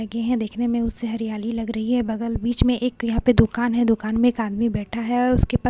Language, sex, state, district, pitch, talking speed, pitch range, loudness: Hindi, female, Bihar, Katihar, 230 Hz, 305 wpm, 225-240 Hz, -21 LUFS